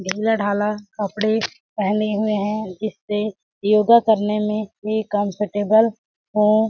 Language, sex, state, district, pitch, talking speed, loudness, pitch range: Hindi, female, Chhattisgarh, Balrampur, 210 Hz, 125 wpm, -20 LUFS, 205-215 Hz